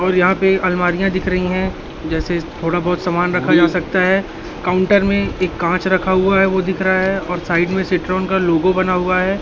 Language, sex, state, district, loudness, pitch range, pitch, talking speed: Hindi, male, Madhya Pradesh, Katni, -16 LUFS, 175-190 Hz, 185 Hz, 225 wpm